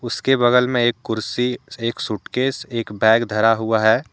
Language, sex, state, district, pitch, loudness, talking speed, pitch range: Hindi, male, Jharkhand, Deoghar, 115 Hz, -19 LUFS, 175 wpm, 110-125 Hz